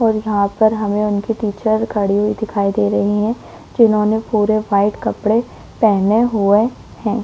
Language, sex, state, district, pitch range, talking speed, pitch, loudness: Hindi, female, Chhattisgarh, Korba, 205-220 Hz, 140 wpm, 210 Hz, -16 LUFS